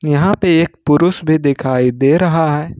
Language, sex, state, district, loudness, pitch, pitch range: Hindi, male, Jharkhand, Ranchi, -14 LUFS, 155 Hz, 140-165 Hz